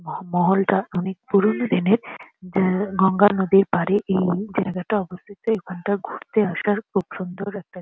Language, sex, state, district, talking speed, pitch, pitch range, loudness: Bengali, female, West Bengal, Kolkata, 145 wpm, 195 Hz, 185-205 Hz, -22 LUFS